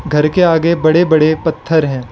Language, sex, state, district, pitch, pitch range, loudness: Hindi, male, Arunachal Pradesh, Lower Dibang Valley, 160 Hz, 155-165 Hz, -12 LUFS